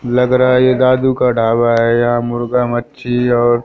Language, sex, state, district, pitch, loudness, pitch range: Hindi, male, Madhya Pradesh, Katni, 120 Hz, -13 LUFS, 120-125 Hz